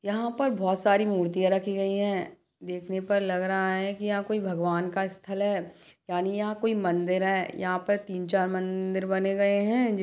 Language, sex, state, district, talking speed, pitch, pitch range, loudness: Hindi, female, Chhattisgarh, Kabirdham, 190 wpm, 190 Hz, 185-205 Hz, -27 LUFS